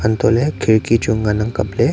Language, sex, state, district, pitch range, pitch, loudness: Wancho, male, Arunachal Pradesh, Longding, 105-115 Hz, 110 Hz, -16 LUFS